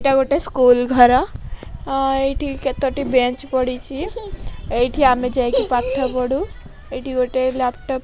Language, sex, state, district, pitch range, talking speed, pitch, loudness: Odia, female, Odisha, Khordha, 250-270 Hz, 125 wpm, 260 Hz, -18 LUFS